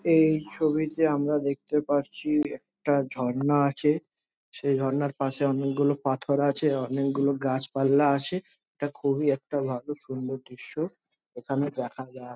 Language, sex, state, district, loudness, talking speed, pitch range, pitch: Bengali, male, West Bengal, Jhargram, -27 LUFS, 140 wpm, 135-150 Hz, 140 Hz